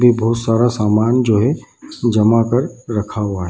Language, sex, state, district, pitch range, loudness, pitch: Hindi, male, Bihar, Bhagalpur, 105-120 Hz, -16 LUFS, 115 Hz